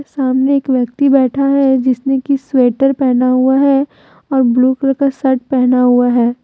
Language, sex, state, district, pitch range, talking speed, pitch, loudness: Hindi, female, Jharkhand, Deoghar, 255-275 Hz, 170 wpm, 265 Hz, -13 LUFS